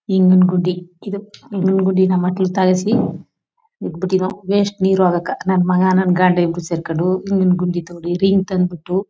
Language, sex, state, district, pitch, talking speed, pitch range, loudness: Kannada, female, Karnataka, Chamarajanagar, 185 Hz, 120 wpm, 180-190 Hz, -17 LUFS